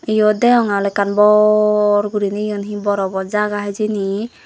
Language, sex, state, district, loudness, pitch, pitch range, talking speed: Chakma, female, Tripura, West Tripura, -16 LUFS, 210 Hz, 200-210 Hz, 150 wpm